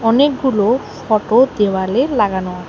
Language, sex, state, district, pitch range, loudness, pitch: Bengali, female, West Bengal, Alipurduar, 200-260 Hz, -15 LUFS, 225 Hz